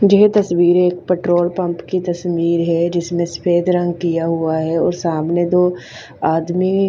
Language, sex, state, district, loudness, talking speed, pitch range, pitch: Hindi, female, Haryana, Charkhi Dadri, -17 LUFS, 155 wpm, 170-180 Hz, 175 Hz